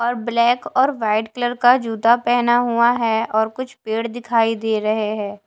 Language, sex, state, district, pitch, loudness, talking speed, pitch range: Hindi, female, Delhi, New Delhi, 235 Hz, -18 LUFS, 185 wpm, 220-245 Hz